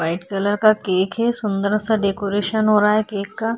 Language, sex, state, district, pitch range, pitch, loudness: Hindi, female, Bihar, Vaishali, 200-215 Hz, 210 Hz, -19 LUFS